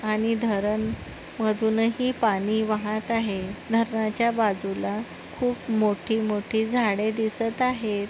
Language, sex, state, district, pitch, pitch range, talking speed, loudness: Marathi, female, Maharashtra, Nagpur, 220 Hz, 210-230 Hz, 95 wpm, -25 LUFS